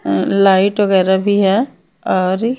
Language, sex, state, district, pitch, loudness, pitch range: Hindi, female, Maharashtra, Mumbai Suburban, 195 Hz, -14 LUFS, 190-205 Hz